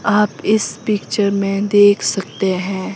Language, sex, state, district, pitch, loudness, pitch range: Hindi, female, Himachal Pradesh, Shimla, 205 Hz, -16 LUFS, 195-210 Hz